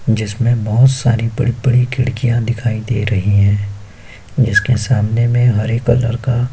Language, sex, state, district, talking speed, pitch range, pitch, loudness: Hindi, male, Uttar Pradesh, Jyotiba Phule Nagar, 145 wpm, 110-125 Hz, 120 Hz, -15 LUFS